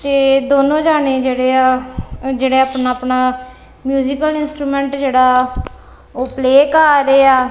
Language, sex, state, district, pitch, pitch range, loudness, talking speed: Punjabi, female, Punjab, Kapurthala, 265 Hz, 255-280 Hz, -14 LUFS, 145 wpm